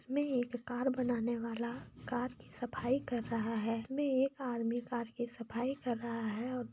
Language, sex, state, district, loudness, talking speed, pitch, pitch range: Hindi, female, Jharkhand, Sahebganj, -37 LUFS, 180 wpm, 245 Hz, 235-255 Hz